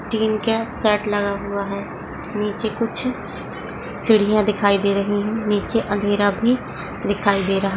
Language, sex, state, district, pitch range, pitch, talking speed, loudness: Hindi, female, Maharashtra, Sindhudurg, 200-220 Hz, 205 Hz, 145 wpm, -21 LUFS